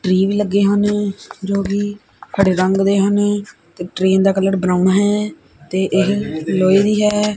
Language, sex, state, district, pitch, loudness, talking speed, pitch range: Punjabi, male, Punjab, Kapurthala, 195 Hz, -16 LUFS, 170 wpm, 190-205 Hz